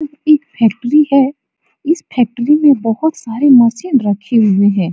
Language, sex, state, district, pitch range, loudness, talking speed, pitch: Hindi, female, Bihar, Supaul, 225-300 Hz, -13 LUFS, 145 wpm, 265 Hz